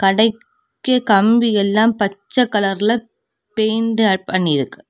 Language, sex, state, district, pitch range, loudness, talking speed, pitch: Tamil, female, Tamil Nadu, Kanyakumari, 195-230 Hz, -17 LUFS, 75 wpm, 215 Hz